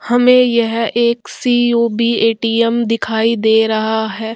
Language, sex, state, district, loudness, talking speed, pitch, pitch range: Hindi, female, Bihar, Vaishali, -14 LUFS, 125 wpm, 230 Hz, 220-235 Hz